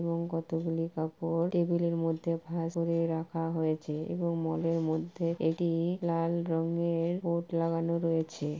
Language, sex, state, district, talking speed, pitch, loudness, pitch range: Bengali, female, West Bengal, Purulia, 140 wpm, 165 Hz, -32 LUFS, 165-170 Hz